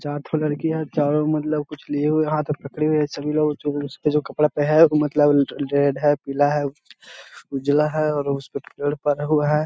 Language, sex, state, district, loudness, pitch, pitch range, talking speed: Hindi, male, Bihar, Jahanabad, -21 LUFS, 150 Hz, 145-150 Hz, 225 wpm